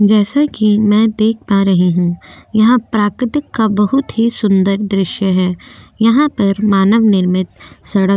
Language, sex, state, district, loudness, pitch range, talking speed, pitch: Hindi, female, Uttar Pradesh, Jyotiba Phule Nagar, -13 LUFS, 195-225 Hz, 155 wpm, 210 Hz